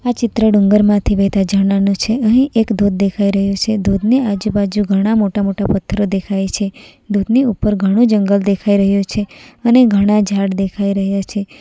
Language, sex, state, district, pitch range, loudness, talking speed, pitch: Gujarati, female, Gujarat, Valsad, 195-215 Hz, -14 LUFS, 180 wpm, 200 Hz